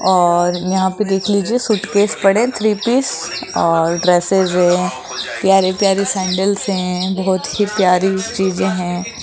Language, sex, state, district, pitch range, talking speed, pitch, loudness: Hindi, female, Rajasthan, Jaipur, 180-205 Hz, 145 wpm, 190 Hz, -16 LUFS